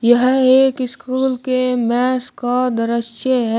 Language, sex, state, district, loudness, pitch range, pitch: Hindi, male, Uttar Pradesh, Shamli, -17 LUFS, 240-255 Hz, 250 Hz